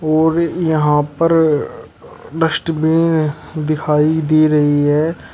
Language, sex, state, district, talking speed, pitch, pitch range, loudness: Hindi, male, Uttar Pradesh, Shamli, 100 wpm, 155 Hz, 150-165 Hz, -15 LUFS